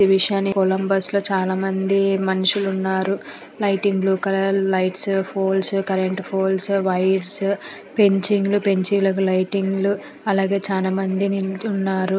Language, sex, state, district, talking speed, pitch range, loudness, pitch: Telugu, female, Andhra Pradesh, Anantapur, 120 wpm, 190-195 Hz, -20 LUFS, 195 Hz